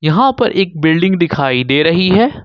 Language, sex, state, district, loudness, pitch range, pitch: Hindi, male, Jharkhand, Ranchi, -12 LUFS, 155-195 Hz, 170 Hz